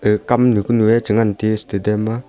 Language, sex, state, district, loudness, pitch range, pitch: Wancho, male, Arunachal Pradesh, Longding, -17 LUFS, 105-115 Hz, 110 Hz